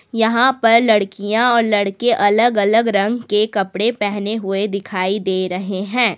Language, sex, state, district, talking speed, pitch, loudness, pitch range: Hindi, female, Jharkhand, Deoghar, 155 wpm, 210 Hz, -17 LUFS, 200-230 Hz